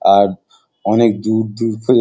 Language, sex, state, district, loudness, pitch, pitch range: Bengali, male, West Bengal, Jalpaiguri, -16 LUFS, 110 Hz, 105-115 Hz